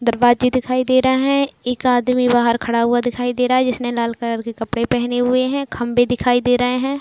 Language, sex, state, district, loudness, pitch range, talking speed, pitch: Hindi, female, Uttar Pradesh, Jalaun, -17 LUFS, 240-255 Hz, 240 wpm, 245 Hz